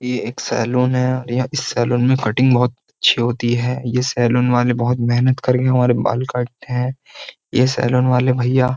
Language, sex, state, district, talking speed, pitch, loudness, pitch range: Hindi, male, Uttar Pradesh, Jyotiba Phule Nagar, 180 wpm, 125 Hz, -17 LUFS, 120-125 Hz